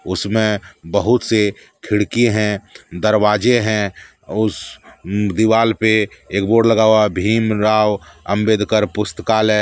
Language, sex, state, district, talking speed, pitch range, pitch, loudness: Hindi, male, Jharkhand, Deoghar, 125 wpm, 105-110 Hz, 105 Hz, -16 LUFS